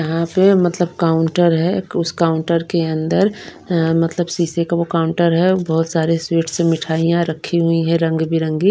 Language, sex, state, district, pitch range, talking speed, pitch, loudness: Hindi, female, Bihar, Patna, 165-170 Hz, 170 wpm, 165 Hz, -17 LUFS